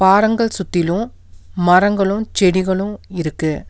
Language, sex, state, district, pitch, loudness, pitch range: Tamil, female, Tamil Nadu, Nilgiris, 190 Hz, -17 LUFS, 170-205 Hz